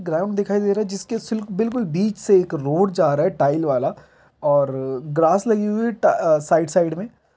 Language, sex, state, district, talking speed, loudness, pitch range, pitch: Hindi, male, Jharkhand, Jamtara, 205 wpm, -20 LUFS, 165-220 Hz, 200 Hz